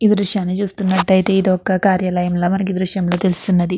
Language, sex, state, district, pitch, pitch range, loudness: Telugu, female, Andhra Pradesh, Krishna, 190 Hz, 180-195 Hz, -17 LUFS